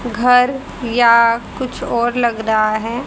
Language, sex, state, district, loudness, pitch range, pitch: Hindi, female, Haryana, Rohtak, -15 LUFS, 230-250 Hz, 235 Hz